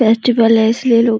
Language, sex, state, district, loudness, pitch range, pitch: Hindi, female, Uttar Pradesh, Deoria, -12 LUFS, 225-235 Hz, 230 Hz